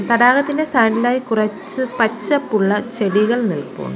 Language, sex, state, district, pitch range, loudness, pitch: Malayalam, female, Kerala, Kollam, 215-255 Hz, -17 LUFS, 230 Hz